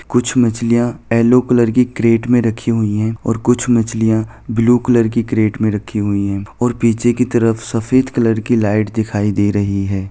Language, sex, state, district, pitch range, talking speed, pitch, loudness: Hindi, male, Jharkhand, Sahebganj, 110-120 Hz, 195 wpm, 115 Hz, -15 LUFS